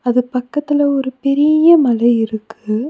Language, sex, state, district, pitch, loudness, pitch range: Tamil, female, Tamil Nadu, Nilgiris, 255 Hz, -14 LUFS, 235-290 Hz